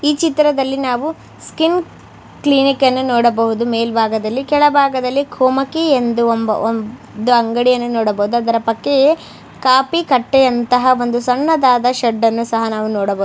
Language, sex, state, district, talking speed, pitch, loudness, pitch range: Kannada, female, Karnataka, Mysore, 125 wpm, 250 Hz, -15 LUFS, 230-275 Hz